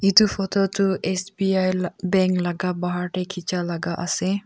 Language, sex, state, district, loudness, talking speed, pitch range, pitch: Nagamese, female, Nagaland, Kohima, -23 LUFS, 160 wpm, 180-195 Hz, 185 Hz